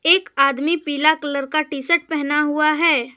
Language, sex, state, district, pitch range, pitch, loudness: Hindi, female, Jharkhand, Deoghar, 285-320 Hz, 305 Hz, -18 LUFS